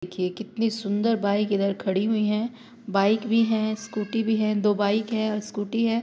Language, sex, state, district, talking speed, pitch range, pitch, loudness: Hindi, female, Uttar Pradesh, Hamirpur, 240 wpm, 205-225 Hz, 215 Hz, -25 LUFS